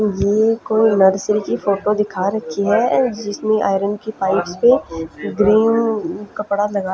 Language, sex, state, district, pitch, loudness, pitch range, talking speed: Hindi, female, Punjab, Fazilka, 210 Hz, -17 LUFS, 200-220 Hz, 140 wpm